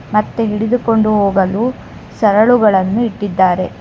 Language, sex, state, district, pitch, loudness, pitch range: Kannada, female, Karnataka, Bangalore, 210 Hz, -14 LUFS, 200-230 Hz